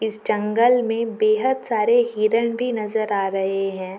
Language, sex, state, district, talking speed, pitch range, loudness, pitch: Hindi, female, Jharkhand, Jamtara, 165 wpm, 210-235 Hz, -21 LUFS, 220 Hz